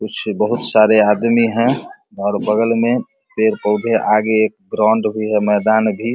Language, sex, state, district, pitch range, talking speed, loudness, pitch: Hindi, male, Bihar, Vaishali, 105-115 Hz, 175 wpm, -16 LUFS, 110 Hz